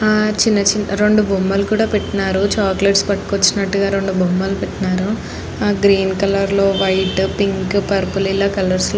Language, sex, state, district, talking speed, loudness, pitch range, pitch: Telugu, female, Andhra Pradesh, Anantapur, 125 wpm, -16 LUFS, 195-200 Hz, 195 Hz